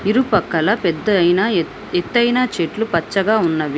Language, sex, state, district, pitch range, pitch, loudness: Telugu, female, Telangana, Hyderabad, 170-220 Hz, 195 Hz, -17 LUFS